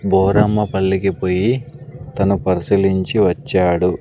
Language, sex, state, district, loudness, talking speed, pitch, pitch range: Telugu, male, Andhra Pradesh, Sri Satya Sai, -17 LUFS, 75 wpm, 95 Hz, 95-105 Hz